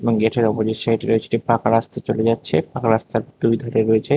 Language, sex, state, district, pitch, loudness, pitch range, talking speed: Bengali, male, Tripura, West Tripura, 115 Hz, -20 LUFS, 110-115 Hz, 215 wpm